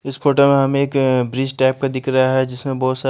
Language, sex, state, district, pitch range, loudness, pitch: Hindi, male, Punjab, Fazilka, 130-135 Hz, -17 LUFS, 135 Hz